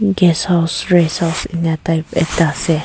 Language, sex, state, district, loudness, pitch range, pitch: Nagamese, female, Nagaland, Kohima, -16 LUFS, 160-175 Hz, 165 Hz